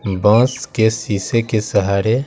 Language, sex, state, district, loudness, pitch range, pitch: Hindi, male, Bihar, Patna, -17 LUFS, 100-120 Hz, 110 Hz